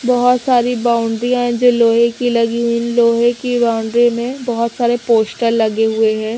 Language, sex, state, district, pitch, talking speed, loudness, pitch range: Hindi, female, Chhattisgarh, Raipur, 235 Hz, 180 wpm, -15 LUFS, 230-245 Hz